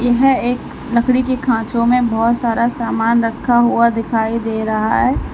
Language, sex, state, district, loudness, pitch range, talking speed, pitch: Hindi, female, Uttar Pradesh, Lalitpur, -16 LUFS, 225-245 Hz, 170 wpm, 235 Hz